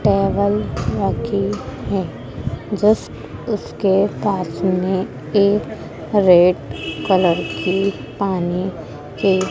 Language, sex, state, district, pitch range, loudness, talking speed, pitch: Hindi, female, Madhya Pradesh, Dhar, 175-200 Hz, -19 LUFS, 80 wpm, 190 Hz